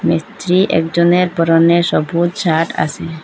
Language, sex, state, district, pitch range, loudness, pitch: Bengali, female, Assam, Hailakandi, 165-175 Hz, -14 LUFS, 170 Hz